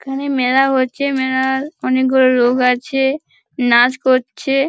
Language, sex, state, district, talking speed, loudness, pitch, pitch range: Bengali, female, West Bengal, Paschim Medinipur, 115 wpm, -15 LUFS, 260 Hz, 255-270 Hz